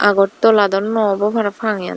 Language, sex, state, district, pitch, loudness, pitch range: Chakma, female, Tripura, Dhalai, 205 Hz, -16 LUFS, 200-220 Hz